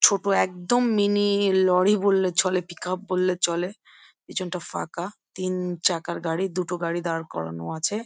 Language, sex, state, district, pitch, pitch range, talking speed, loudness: Bengali, female, West Bengal, Jhargram, 185 Hz, 170-195 Hz, 150 wpm, -24 LUFS